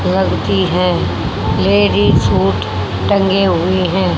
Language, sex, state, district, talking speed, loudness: Hindi, female, Haryana, Charkhi Dadri, 100 wpm, -14 LUFS